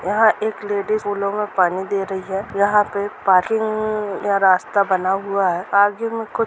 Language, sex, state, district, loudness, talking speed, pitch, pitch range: Hindi, female, Jharkhand, Sahebganj, -19 LUFS, 185 wpm, 200 Hz, 195-210 Hz